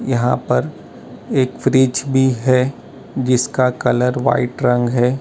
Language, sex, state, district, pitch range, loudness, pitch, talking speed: Hindi, male, Maharashtra, Mumbai Suburban, 125-130 Hz, -17 LUFS, 125 Hz, 125 wpm